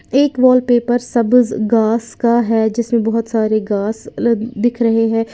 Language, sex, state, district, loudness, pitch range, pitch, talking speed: Hindi, female, Uttar Pradesh, Lalitpur, -15 LUFS, 225-240 Hz, 230 Hz, 160 wpm